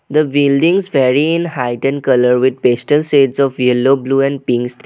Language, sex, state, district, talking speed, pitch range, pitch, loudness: English, male, Assam, Sonitpur, 185 wpm, 125-145 Hz, 135 Hz, -14 LUFS